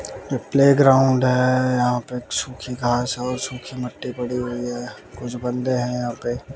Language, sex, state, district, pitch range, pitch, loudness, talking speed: Hindi, male, Haryana, Jhajjar, 120-130 Hz, 125 Hz, -21 LUFS, 165 wpm